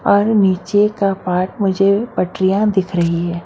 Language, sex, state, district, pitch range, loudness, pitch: Hindi, female, Maharashtra, Mumbai Suburban, 180-205 Hz, -16 LUFS, 195 Hz